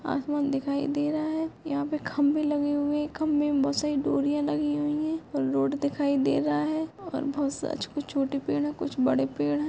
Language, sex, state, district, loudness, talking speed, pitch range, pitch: Hindi, female, Chhattisgarh, Korba, -28 LUFS, 205 wpm, 280-295 Hz, 290 Hz